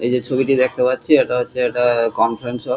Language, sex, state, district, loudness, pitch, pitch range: Bengali, male, West Bengal, Kolkata, -17 LUFS, 125 Hz, 120-130 Hz